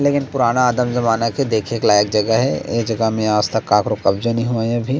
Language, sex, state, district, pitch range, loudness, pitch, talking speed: Chhattisgarhi, male, Chhattisgarh, Rajnandgaon, 110-120 Hz, -17 LUFS, 115 Hz, 225 wpm